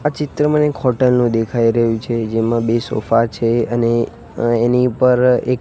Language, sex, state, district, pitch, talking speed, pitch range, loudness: Gujarati, male, Gujarat, Gandhinagar, 120 Hz, 180 wpm, 115-125 Hz, -16 LUFS